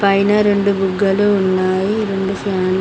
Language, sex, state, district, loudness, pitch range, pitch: Telugu, female, Telangana, Mahabubabad, -16 LUFS, 190-200 Hz, 195 Hz